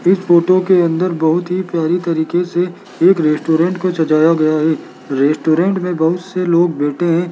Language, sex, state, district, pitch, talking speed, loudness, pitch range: Hindi, male, Rajasthan, Jaipur, 170 Hz, 180 wpm, -15 LUFS, 160-180 Hz